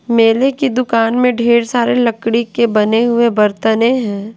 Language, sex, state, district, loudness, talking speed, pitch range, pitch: Hindi, female, Bihar, West Champaran, -13 LUFS, 165 wpm, 225-240 Hz, 235 Hz